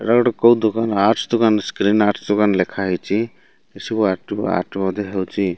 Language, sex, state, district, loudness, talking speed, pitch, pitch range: Odia, male, Odisha, Malkangiri, -18 LUFS, 195 wpm, 105 Hz, 95-110 Hz